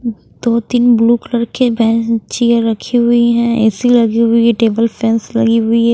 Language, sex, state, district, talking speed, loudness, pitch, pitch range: Hindi, female, Haryana, Rohtak, 170 wpm, -13 LUFS, 230 Hz, 230-235 Hz